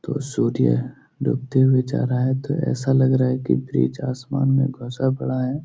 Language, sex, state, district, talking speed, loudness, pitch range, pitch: Hindi, male, Uttar Pradesh, Etah, 200 wpm, -21 LUFS, 130-140 Hz, 130 Hz